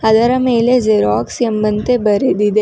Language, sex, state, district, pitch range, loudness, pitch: Kannada, female, Karnataka, Bangalore, 210-245 Hz, -14 LUFS, 220 Hz